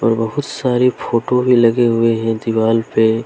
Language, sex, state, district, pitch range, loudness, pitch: Hindi, male, Jharkhand, Deoghar, 115-125 Hz, -15 LUFS, 115 Hz